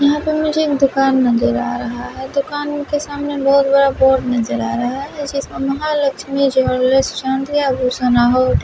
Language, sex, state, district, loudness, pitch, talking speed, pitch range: Hindi, female, Bihar, West Champaran, -16 LUFS, 270 Hz, 155 wpm, 255-285 Hz